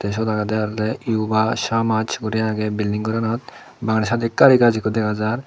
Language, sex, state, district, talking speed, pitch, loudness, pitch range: Chakma, male, Tripura, Dhalai, 185 wpm, 110 Hz, -20 LUFS, 110-115 Hz